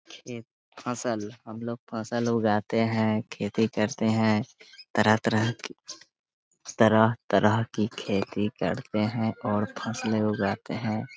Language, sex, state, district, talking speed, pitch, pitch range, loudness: Hindi, male, Bihar, Muzaffarpur, 115 wpm, 110 Hz, 105-115 Hz, -27 LUFS